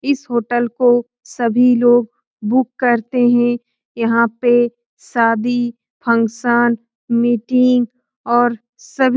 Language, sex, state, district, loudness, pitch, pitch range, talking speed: Hindi, female, Bihar, Lakhisarai, -16 LUFS, 240 Hz, 235-245 Hz, 105 wpm